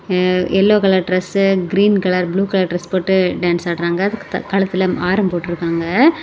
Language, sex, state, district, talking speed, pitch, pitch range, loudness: Tamil, female, Tamil Nadu, Kanyakumari, 145 wpm, 185 Hz, 180-195 Hz, -16 LUFS